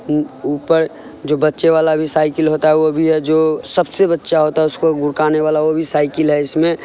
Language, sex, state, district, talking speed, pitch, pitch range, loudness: Hindi, male, Bihar, Sitamarhi, 230 wpm, 155 Hz, 155-160 Hz, -15 LUFS